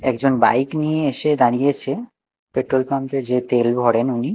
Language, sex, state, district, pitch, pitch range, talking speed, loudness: Bengali, male, Odisha, Nuapada, 135 Hz, 125-145 Hz, 165 wpm, -19 LUFS